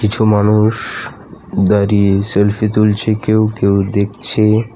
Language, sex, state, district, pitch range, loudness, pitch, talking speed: Bengali, male, West Bengal, Alipurduar, 100-110 Hz, -14 LUFS, 105 Hz, 115 wpm